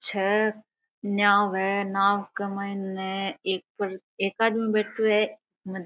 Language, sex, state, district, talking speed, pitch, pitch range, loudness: Rajasthani, female, Rajasthan, Nagaur, 100 wpm, 200 Hz, 195-215 Hz, -26 LUFS